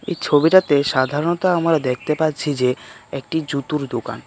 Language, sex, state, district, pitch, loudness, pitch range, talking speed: Bengali, male, Tripura, West Tripura, 150 Hz, -19 LUFS, 140-160 Hz, 155 wpm